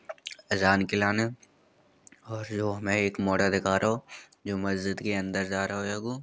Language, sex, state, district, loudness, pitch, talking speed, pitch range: Bundeli, male, Uttar Pradesh, Jalaun, -28 LUFS, 100 Hz, 165 wpm, 95-105 Hz